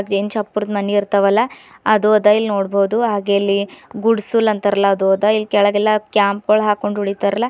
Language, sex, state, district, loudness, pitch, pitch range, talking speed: Kannada, female, Karnataka, Bidar, -16 LUFS, 205 Hz, 200-215 Hz, 160 wpm